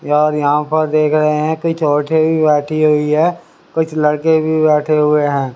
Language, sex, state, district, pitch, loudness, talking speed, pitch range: Hindi, male, Haryana, Rohtak, 150 Hz, -14 LUFS, 170 wpm, 150-160 Hz